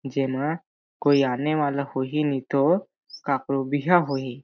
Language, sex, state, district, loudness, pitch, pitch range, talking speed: Chhattisgarhi, male, Chhattisgarh, Jashpur, -24 LUFS, 140 Hz, 135-145 Hz, 160 wpm